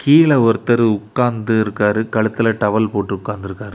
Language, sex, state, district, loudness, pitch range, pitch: Tamil, male, Tamil Nadu, Kanyakumari, -16 LUFS, 105-115 Hz, 110 Hz